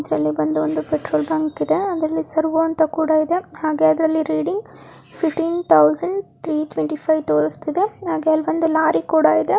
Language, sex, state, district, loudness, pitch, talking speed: Kannada, female, Karnataka, Chamarajanagar, -19 LUFS, 315 Hz, 155 wpm